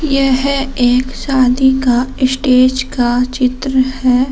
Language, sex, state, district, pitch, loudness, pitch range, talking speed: Hindi, female, Jharkhand, Palamu, 260 Hz, -13 LUFS, 250-265 Hz, 110 wpm